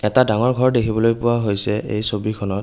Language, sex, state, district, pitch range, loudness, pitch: Assamese, male, Assam, Kamrup Metropolitan, 105-120 Hz, -19 LUFS, 110 Hz